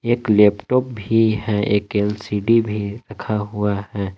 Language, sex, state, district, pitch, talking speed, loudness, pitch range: Hindi, male, Jharkhand, Palamu, 105 Hz, 145 wpm, -19 LUFS, 105-115 Hz